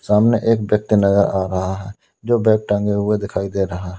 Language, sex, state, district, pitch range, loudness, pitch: Hindi, male, Uttar Pradesh, Lalitpur, 100-110 Hz, -18 LUFS, 105 Hz